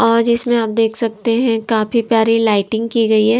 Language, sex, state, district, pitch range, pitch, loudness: Hindi, female, Himachal Pradesh, Shimla, 220-235 Hz, 230 Hz, -15 LUFS